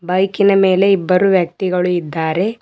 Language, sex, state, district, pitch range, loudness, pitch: Kannada, female, Karnataka, Bidar, 180-195 Hz, -15 LUFS, 185 Hz